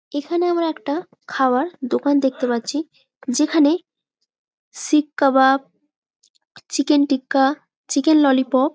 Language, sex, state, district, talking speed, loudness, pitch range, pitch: Bengali, female, West Bengal, Malda, 105 wpm, -19 LUFS, 270-305 Hz, 290 Hz